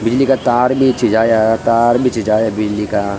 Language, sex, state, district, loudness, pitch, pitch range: Garhwali, male, Uttarakhand, Tehri Garhwal, -14 LUFS, 115 Hz, 110-125 Hz